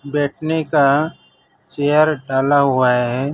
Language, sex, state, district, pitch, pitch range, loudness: Hindi, male, Gujarat, Valsad, 145 Hz, 135-150 Hz, -17 LUFS